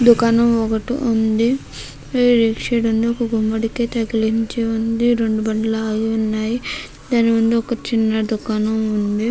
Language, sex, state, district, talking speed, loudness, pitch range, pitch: Telugu, female, Andhra Pradesh, Krishna, 130 wpm, -18 LUFS, 220-235 Hz, 225 Hz